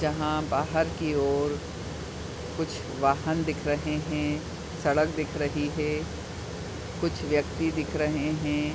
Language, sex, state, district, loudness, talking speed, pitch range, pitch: Hindi, female, Uttar Pradesh, Deoria, -29 LUFS, 125 wpm, 135-155 Hz, 150 Hz